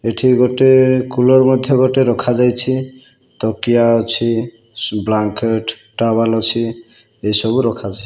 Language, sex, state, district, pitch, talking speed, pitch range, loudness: Odia, male, Odisha, Malkangiri, 115 Hz, 110 wpm, 110-130 Hz, -15 LUFS